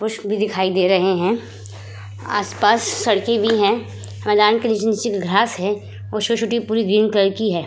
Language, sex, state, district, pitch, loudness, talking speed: Hindi, female, Uttar Pradesh, Muzaffarnagar, 200 Hz, -18 LUFS, 135 wpm